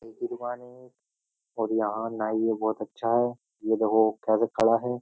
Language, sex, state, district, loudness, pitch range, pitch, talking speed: Hindi, male, Uttar Pradesh, Jyotiba Phule Nagar, -27 LUFS, 110-120 Hz, 115 Hz, 145 wpm